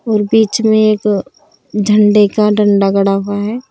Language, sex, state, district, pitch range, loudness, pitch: Hindi, female, Uttar Pradesh, Saharanpur, 205-215 Hz, -12 LUFS, 210 Hz